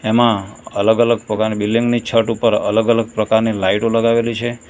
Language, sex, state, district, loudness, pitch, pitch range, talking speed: Gujarati, male, Gujarat, Valsad, -16 LUFS, 115 Hz, 110-115 Hz, 180 wpm